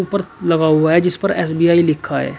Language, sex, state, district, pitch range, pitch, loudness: Hindi, male, Uttar Pradesh, Shamli, 160-185 Hz, 170 Hz, -15 LUFS